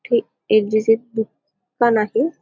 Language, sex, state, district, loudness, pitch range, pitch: Marathi, female, Maharashtra, Dhule, -19 LUFS, 215-235 Hz, 220 Hz